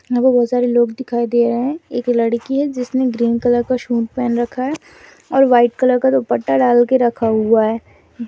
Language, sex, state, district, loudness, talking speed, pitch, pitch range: Hindi, female, Rajasthan, Nagaur, -16 LUFS, 215 wpm, 245 Hz, 235-255 Hz